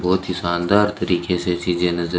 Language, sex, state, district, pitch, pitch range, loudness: Hindi, male, Rajasthan, Bikaner, 90 Hz, 85-90 Hz, -20 LUFS